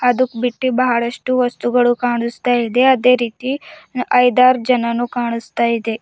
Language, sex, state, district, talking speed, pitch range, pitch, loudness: Kannada, female, Karnataka, Bidar, 120 wpm, 235-250 Hz, 245 Hz, -16 LUFS